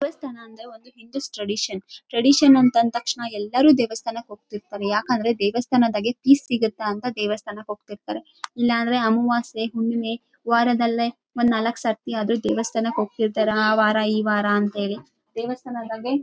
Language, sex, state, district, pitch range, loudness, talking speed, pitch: Kannada, female, Karnataka, Raichur, 215-240 Hz, -22 LUFS, 115 wpm, 230 Hz